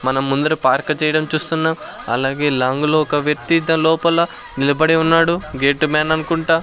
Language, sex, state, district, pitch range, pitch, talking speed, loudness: Telugu, male, Andhra Pradesh, Sri Satya Sai, 140-160 Hz, 155 Hz, 145 wpm, -17 LUFS